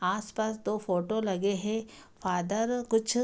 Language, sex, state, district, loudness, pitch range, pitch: Hindi, female, Bihar, Madhepura, -31 LUFS, 195-225 Hz, 215 Hz